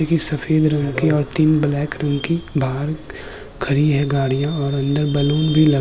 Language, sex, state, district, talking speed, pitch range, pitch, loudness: Hindi, male, Uttar Pradesh, Muzaffarnagar, 195 wpm, 140-155 Hz, 150 Hz, -18 LUFS